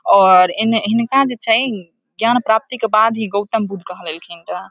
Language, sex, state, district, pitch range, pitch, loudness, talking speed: Maithili, female, Bihar, Samastipur, 195-230 Hz, 220 Hz, -15 LUFS, 180 wpm